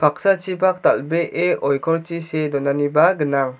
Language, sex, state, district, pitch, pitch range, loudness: Garo, male, Meghalaya, South Garo Hills, 155 Hz, 140-175 Hz, -19 LUFS